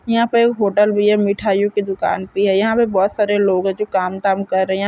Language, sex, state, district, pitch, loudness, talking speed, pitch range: Hindi, female, Chhattisgarh, Korba, 200 Hz, -17 LUFS, 270 wpm, 195-210 Hz